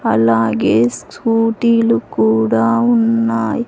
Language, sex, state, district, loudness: Telugu, female, Andhra Pradesh, Sri Satya Sai, -14 LUFS